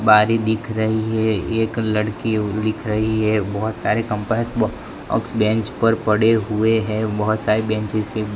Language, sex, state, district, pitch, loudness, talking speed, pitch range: Hindi, male, Gujarat, Gandhinagar, 110 Hz, -20 LUFS, 160 wpm, 105-110 Hz